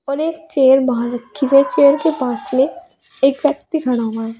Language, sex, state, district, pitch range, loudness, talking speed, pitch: Hindi, female, Uttar Pradesh, Saharanpur, 250-295 Hz, -16 LUFS, 205 wpm, 275 Hz